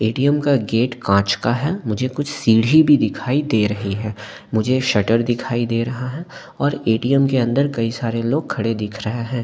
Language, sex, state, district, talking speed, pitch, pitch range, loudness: Hindi, male, Delhi, New Delhi, 195 wpm, 120 Hz, 110-135 Hz, -19 LUFS